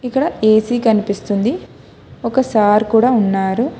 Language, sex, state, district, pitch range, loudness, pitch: Telugu, female, Telangana, Hyderabad, 210-245 Hz, -15 LUFS, 225 Hz